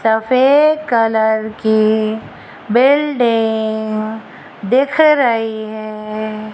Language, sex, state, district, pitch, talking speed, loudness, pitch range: Hindi, female, Rajasthan, Jaipur, 220 Hz, 65 wpm, -15 LUFS, 215-255 Hz